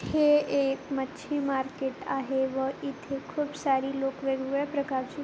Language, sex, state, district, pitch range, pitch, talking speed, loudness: Marathi, female, Maharashtra, Pune, 265-285 Hz, 275 Hz, 140 wpm, -29 LUFS